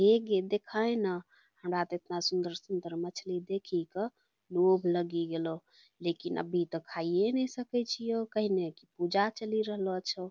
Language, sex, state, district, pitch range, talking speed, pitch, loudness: Angika, female, Bihar, Bhagalpur, 175-215 Hz, 165 wpm, 185 Hz, -33 LUFS